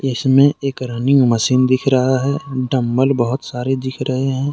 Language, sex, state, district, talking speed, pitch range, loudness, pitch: Hindi, male, Jharkhand, Deoghar, 170 wpm, 130-135 Hz, -16 LUFS, 130 Hz